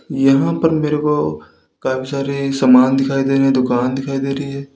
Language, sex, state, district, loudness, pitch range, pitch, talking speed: Hindi, male, Uttar Pradesh, Lalitpur, -16 LUFS, 130-140 Hz, 135 Hz, 175 wpm